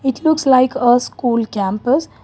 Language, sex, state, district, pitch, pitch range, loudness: English, female, Karnataka, Bangalore, 255 Hz, 240-270 Hz, -16 LUFS